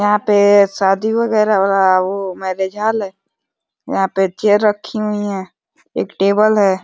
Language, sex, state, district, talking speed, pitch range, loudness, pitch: Hindi, male, Uttar Pradesh, Deoria, 175 wpm, 195-210 Hz, -15 LUFS, 200 Hz